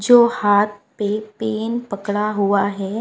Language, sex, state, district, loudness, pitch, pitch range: Hindi, female, Bihar, West Champaran, -19 LUFS, 210 Hz, 200-220 Hz